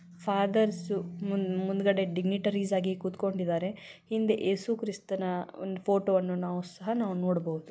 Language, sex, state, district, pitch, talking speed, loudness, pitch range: Kannada, female, Karnataka, Belgaum, 190 Hz, 110 wpm, -30 LUFS, 180-200 Hz